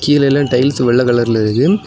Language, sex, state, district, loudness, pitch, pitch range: Tamil, male, Tamil Nadu, Kanyakumari, -13 LUFS, 125 Hz, 120-145 Hz